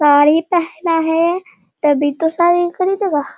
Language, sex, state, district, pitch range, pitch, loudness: Hindi, female, Bihar, Sitamarhi, 300-350 Hz, 330 Hz, -15 LUFS